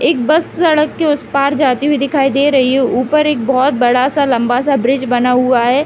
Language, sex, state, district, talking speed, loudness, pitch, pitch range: Hindi, female, Uttar Pradesh, Deoria, 235 wpm, -13 LUFS, 270 Hz, 255-290 Hz